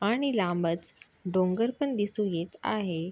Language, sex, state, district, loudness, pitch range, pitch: Marathi, female, Maharashtra, Sindhudurg, -29 LUFS, 170-215 Hz, 185 Hz